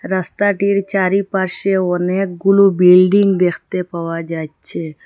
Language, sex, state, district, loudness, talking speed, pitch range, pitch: Bengali, female, Assam, Hailakandi, -15 LUFS, 95 wpm, 180-195 Hz, 185 Hz